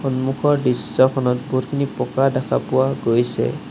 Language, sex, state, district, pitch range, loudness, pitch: Assamese, male, Assam, Sonitpur, 125-135 Hz, -19 LUFS, 130 Hz